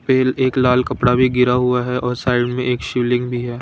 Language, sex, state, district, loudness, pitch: Hindi, male, Bihar, Kaimur, -17 LUFS, 125 Hz